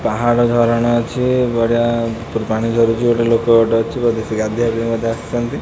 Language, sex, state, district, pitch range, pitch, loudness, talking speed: Odia, male, Odisha, Khordha, 115-120 Hz, 115 Hz, -16 LUFS, 190 wpm